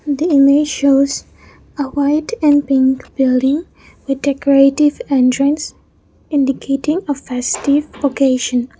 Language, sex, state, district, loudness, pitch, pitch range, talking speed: English, female, Mizoram, Aizawl, -15 LUFS, 280 Hz, 270-290 Hz, 100 wpm